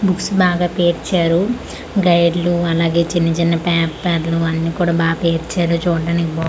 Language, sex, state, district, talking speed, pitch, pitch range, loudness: Telugu, female, Andhra Pradesh, Manyam, 155 wpm, 170 Hz, 165-175 Hz, -17 LUFS